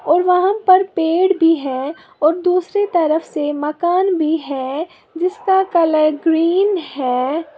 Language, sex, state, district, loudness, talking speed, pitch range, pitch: Hindi, female, Uttar Pradesh, Lalitpur, -16 LUFS, 135 wpm, 305-365 Hz, 330 Hz